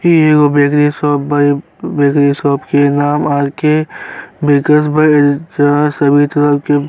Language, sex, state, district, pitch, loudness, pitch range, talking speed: Bhojpuri, male, Uttar Pradesh, Gorakhpur, 145 Hz, -12 LUFS, 145-150 Hz, 150 wpm